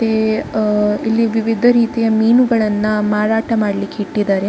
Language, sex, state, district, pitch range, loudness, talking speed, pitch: Kannada, female, Karnataka, Dakshina Kannada, 210-225 Hz, -15 LUFS, 120 wpm, 220 Hz